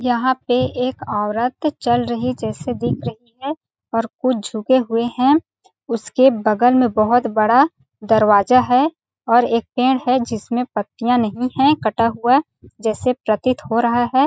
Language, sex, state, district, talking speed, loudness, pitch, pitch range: Hindi, female, Chhattisgarh, Balrampur, 160 wpm, -18 LUFS, 245 Hz, 225-255 Hz